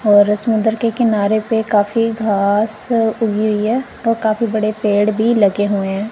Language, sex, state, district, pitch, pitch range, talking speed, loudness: Hindi, female, Punjab, Kapurthala, 215 Hz, 205-225 Hz, 185 wpm, -16 LUFS